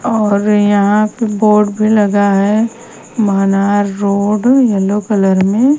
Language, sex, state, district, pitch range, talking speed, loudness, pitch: Hindi, female, Bihar, Kaimur, 200-220 Hz, 115 wpm, -12 LUFS, 210 Hz